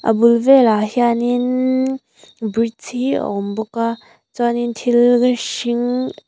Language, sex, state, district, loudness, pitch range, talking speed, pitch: Mizo, female, Mizoram, Aizawl, -17 LUFS, 230-245 Hz, 125 wpm, 240 Hz